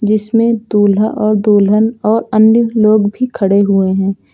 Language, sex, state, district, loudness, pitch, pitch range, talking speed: Hindi, female, Uttar Pradesh, Lucknow, -12 LUFS, 215 Hz, 205-225 Hz, 150 wpm